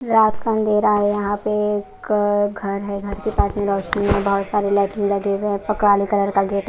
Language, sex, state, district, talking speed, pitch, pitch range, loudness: Hindi, female, Punjab, Kapurthala, 225 wpm, 205 Hz, 200-210 Hz, -20 LUFS